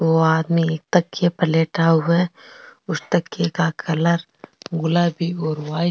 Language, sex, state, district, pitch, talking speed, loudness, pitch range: Rajasthani, female, Rajasthan, Nagaur, 165 Hz, 160 wpm, -20 LUFS, 160-175 Hz